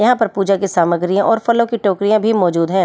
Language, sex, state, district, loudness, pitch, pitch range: Hindi, female, Delhi, New Delhi, -15 LUFS, 200 Hz, 185-225 Hz